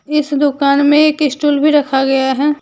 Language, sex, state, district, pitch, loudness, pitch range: Hindi, female, Jharkhand, Deoghar, 290 Hz, -13 LUFS, 280-295 Hz